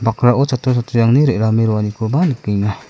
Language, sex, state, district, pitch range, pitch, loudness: Garo, male, Meghalaya, South Garo Hills, 110-130 Hz, 115 Hz, -15 LUFS